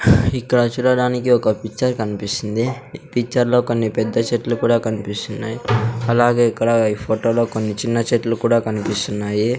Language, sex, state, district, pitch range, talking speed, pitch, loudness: Telugu, male, Andhra Pradesh, Sri Satya Sai, 110-120 Hz, 150 wpm, 115 Hz, -19 LUFS